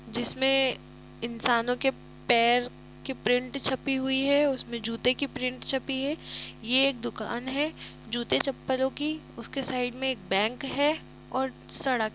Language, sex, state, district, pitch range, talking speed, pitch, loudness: Hindi, female, Bihar, East Champaran, 240-270 Hz, 155 wpm, 260 Hz, -28 LUFS